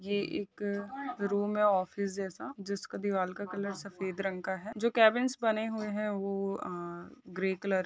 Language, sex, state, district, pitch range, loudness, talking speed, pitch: Hindi, female, Chhattisgarh, Bilaspur, 190-210 Hz, -33 LUFS, 185 wpm, 200 Hz